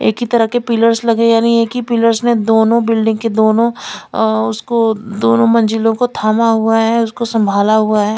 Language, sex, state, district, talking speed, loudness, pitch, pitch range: Hindi, female, Chandigarh, Chandigarh, 210 wpm, -13 LUFS, 225 Hz, 220-230 Hz